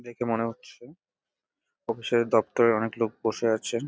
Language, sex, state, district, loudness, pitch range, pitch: Bengali, male, West Bengal, Jalpaiguri, -26 LUFS, 115-120 Hz, 115 Hz